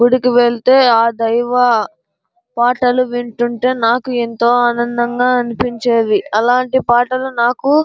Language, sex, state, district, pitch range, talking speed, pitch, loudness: Telugu, male, Andhra Pradesh, Anantapur, 235-250 Hz, 105 wpm, 245 Hz, -14 LUFS